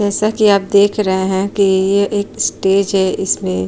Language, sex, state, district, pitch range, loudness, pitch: Hindi, female, Uttar Pradesh, Jyotiba Phule Nagar, 190-205 Hz, -14 LUFS, 200 Hz